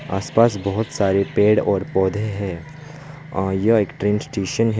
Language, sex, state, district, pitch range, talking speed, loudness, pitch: Hindi, male, West Bengal, Alipurduar, 100-115 Hz, 175 wpm, -20 LUFS, 105 Hz